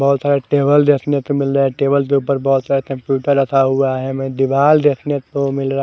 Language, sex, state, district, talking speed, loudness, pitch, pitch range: Hindi, male, Haryana, Charkhi Dadri, 245 wpm, -16 LUFS, 140 Hz, 135-140 Hz